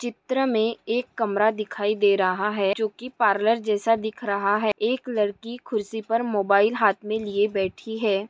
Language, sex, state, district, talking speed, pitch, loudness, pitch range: Hindi, female, Maharashtra, Aurangabad, 180 wpm, 215 Hz, -24 LUFS, 205-225 Hz